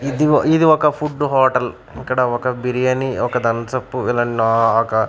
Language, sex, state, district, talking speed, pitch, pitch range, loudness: Telugu, male, Andhra Pradesh, Manyam, 140 wpm, 125 Hz, 120-135 Hz, -17 LUFS